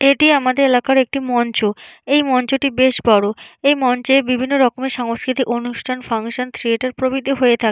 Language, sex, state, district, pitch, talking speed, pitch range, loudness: Bengali, female, West Bengal, Jalpaiguri, 255 Hz, 155 wpm, 240-270 Hz, -17 LUFS